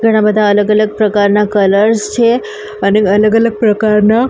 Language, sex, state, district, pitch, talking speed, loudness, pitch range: Gujarati, female, Maharashtra, Mumbai Suburban, 215 Hz, 165 wpm, -11 LUFS, 210-225 Hz